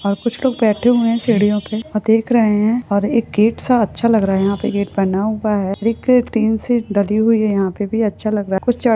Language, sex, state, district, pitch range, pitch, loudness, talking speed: Hindi, female, Jharkhand, Jamtara, 205-230 Hz, 215 Hz, -16 LUFS, 275 wpm